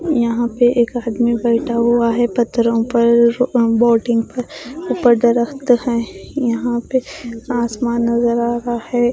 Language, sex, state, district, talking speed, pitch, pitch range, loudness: Hindi, female, Odisha, Khordha, 130 wpm, 235 Hz, 235-245 Hz, -16 LUFS